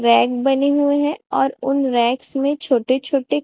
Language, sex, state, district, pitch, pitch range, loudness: Hindi, female, Chhattisgarh, Raipur, 270 Hz, 245-280 Hz, -18 LUFS